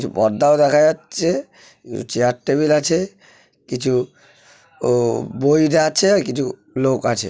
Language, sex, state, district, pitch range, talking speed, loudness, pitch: Bengali, male, West Bengal, Purulia, 125-155 Hz, 125 wpm, -18 LUFS, 140 Hz